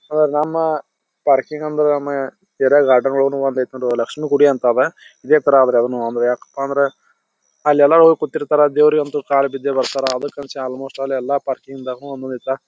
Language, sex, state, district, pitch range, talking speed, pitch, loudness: Kannada, male, Karnataka, Bijapur, 130-150 Hz, 150 wpm, 140 Hz, -17 LUFS